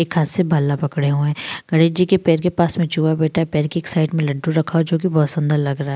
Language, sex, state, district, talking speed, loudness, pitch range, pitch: Hindi, male, Uttar Pradesh, Varanasi, 320 wpm, -18 LUFS, 150-165 Hz, 160 Hz